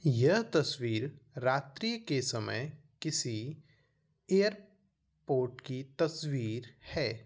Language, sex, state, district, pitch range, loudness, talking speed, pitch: Hindi, male, Bihar, Vaishali, 130-155 Hz, -33 LUFS, 85 wpm, 140 Hz